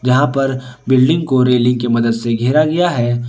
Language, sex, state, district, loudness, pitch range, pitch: Hindi, male, Jharkhand, Ranchi, -14 LUFS, 120-135 Hz, 125 Hz